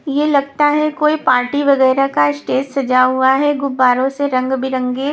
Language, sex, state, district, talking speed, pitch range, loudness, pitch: Hindi, female, Punjab, Kapurthala, 175 wpm, 255-285 Hz, -15 LUFS, 270 Hz